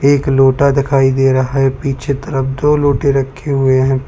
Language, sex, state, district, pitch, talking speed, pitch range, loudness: Hindi, male, Uttar Pradesh, Lalitpur, 135 Hz, 190 wpm, 135-140 Hz, -13 LUFS